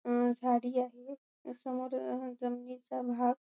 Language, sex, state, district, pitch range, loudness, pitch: Marathi, female, Maharashtra, Sindhudurg, 245-255 Hz, -35 LUFS, 250 Hz